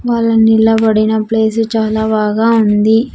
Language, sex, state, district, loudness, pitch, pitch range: Telugu, female, Andhra Pradesh, Sri Satya Sai, -12 LUFS, 220 Hz, 220-225 Hz